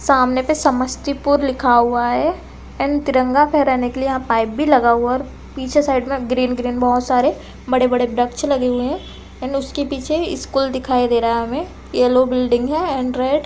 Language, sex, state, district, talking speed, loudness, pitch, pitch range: Hindi, female, Bihar, Samastipur, 195 wpm, -17 LUFS, 260 Hz, 250-280 Hz